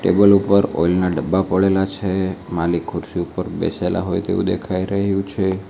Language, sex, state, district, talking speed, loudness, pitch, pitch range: Gujarati, male, Gujarat, Valsad, 170 wpm, -19 LUFS, 95 Hz, 90-100 Hz